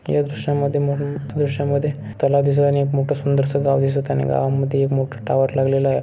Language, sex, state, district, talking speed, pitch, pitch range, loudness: Marathi, male, Maharashtra, Chandrapur, 200 wpm, 140 Hz, 135-140 Hz, -20 LUFS